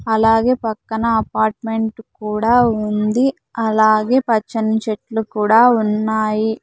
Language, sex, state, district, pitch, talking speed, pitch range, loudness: Telugu, female, Andhra Pradesh, Sri Satya Sai, 220 Hz, 90 wpm, 215-230 Hz, -17 LUFS